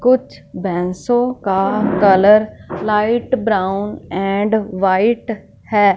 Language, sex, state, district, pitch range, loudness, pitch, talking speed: Hindi, female, Punjab, Fazilka, 190-225 Hz, -16 LUFS, 205 Hz, 90 wpm